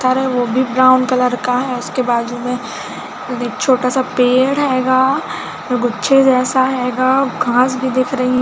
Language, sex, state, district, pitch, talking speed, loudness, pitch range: Hindi, female, Chhattisgarh, Balrampur, 255 Hz, 180 wpm, -15 LUFS, 250-260 Hz